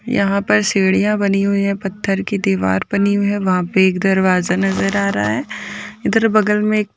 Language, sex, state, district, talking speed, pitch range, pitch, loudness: Hindi, female, Uttarakhand, Uttarkashi, 205 wpm, 190-205 Hz, 200 Hz, -16 LUFS